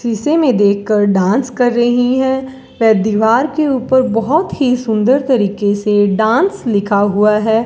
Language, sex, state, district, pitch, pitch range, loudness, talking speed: Hindi, female, Rajasthan, Bikaner, 230 Hz, 210-260 Hz, -13 LUFS, 155 wpm